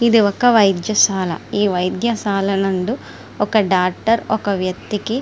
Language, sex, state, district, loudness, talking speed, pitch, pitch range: Telugu, female, Andhra Pradesh, Srikakulam, -17 LUFS, 125 wpm, 205 Hz, 190-220 Hz